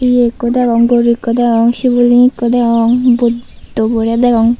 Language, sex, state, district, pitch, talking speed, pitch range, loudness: Chakma, female, Tripura, Unakoti, 240 Hz, 145 wpm, 235-245 Hz, -11 LUFS